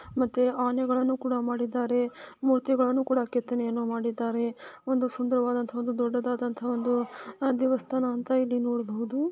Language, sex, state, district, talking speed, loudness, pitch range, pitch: Kannada, female, Karnataka, Dharwad, 110 wpm, -28 LUFS, 240-260 Hz, 245 Hz